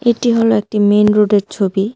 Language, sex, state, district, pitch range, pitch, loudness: Bengali, female, Tripura, West Tripura, 205-230 Hz, 210 Hz, -13 LUFS